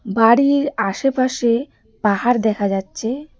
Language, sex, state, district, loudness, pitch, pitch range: Bengali, female, West Bengal, Darjeeling, -18 LUFS, 235 Hz, 210-265 Hz